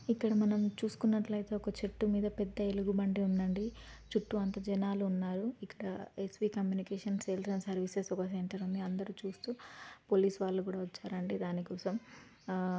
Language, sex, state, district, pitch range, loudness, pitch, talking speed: Telugu, female, Telangana, Karimnagar, 190-210 Hz, -36 LUFS, 195 Hz, 140 wpm